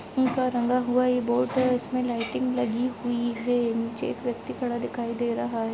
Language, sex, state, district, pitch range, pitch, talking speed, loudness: Hindi, female, Chhattisgarh, Bastar, 235-250 Hz, 245 Hz, 190 wpm, -26 LUFS